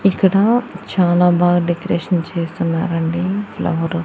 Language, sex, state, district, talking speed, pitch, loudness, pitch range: Telugu, female, Andhra Pradesh, Annamaya, 105 wpm, 175 Hz, -17 LUFS, 170-190 Hz